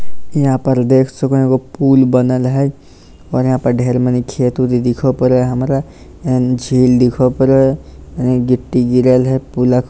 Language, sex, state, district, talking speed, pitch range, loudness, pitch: Maithili, male, Bihar, Lakhisarai, 175 wpm, 125-130 Hz, -14 LUFS, 125 Hz